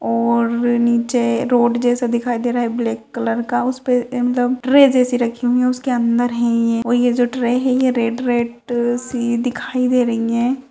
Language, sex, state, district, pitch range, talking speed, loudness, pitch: Hindi, female, Rajasthan, Churu, 235-250 Hz, 195 wpm, -17 LUFS, 245 Hz